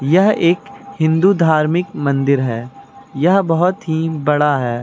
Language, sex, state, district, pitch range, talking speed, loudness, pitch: Hindi, male, Uttar Pradesh, Lucknow, 140-180 Hz, 135 wpm, -16 LUFS, 160 Hz